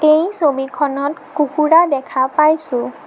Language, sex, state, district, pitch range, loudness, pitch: Assamese, female, Assam, Sonitpur, 270-310 Hz, -16 LUFS, 295 Hz